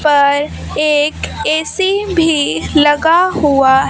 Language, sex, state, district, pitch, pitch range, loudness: Hindi, female, Punjab, Fazilka, 300 Hz, 290-330 Hz, -13 LUFS